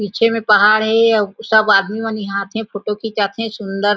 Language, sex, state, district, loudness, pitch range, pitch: Chhattisgarhi, female, Chhattisgarh, Raigarh, -16 LUFS, 205-225 Hz, 215 Hz